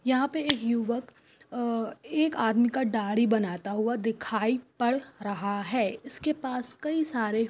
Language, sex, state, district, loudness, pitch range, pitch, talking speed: Hindi, female, Andhra Pradesh, Anantapur, -29 LUFS, 220-260 Hz, 235 Hz, 145 wpm